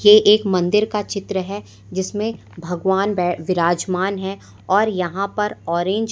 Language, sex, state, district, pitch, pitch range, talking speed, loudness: Hindi, female, Madhya Pradesh, Umaria, 195 Hz, 180-205 Hz, 155 wpm, -20 LUFS